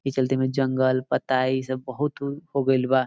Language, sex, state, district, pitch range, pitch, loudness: Bhojpuri, male, Bihar, Saran, 130-135 Hz, 130 Hz, -24 LUFS